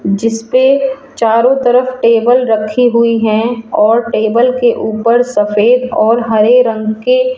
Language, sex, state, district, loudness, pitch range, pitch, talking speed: Hindi, female, Rajasthan, Jaipur, -11 LUFS, 220-250 Hz, 235 Hz, 140 wpm